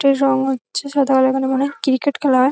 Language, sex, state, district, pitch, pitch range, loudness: Bengali, female, West Bengal, North 24 Parganas, 270 Hz, 265-280 Hz, -17 LUFS